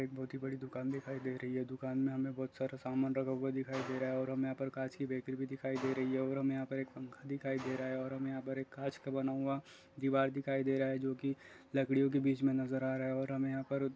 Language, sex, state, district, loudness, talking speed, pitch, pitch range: Hindi, male, Goa, North and South Goa, -38 LUFS, 290 wpm, 135 Hz, 130-135 Hz